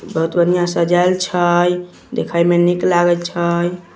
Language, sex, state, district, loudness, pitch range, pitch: Magahi, male, Bihar, Samastipur, -16 LUFS, 175-180 Hz, 175 Hz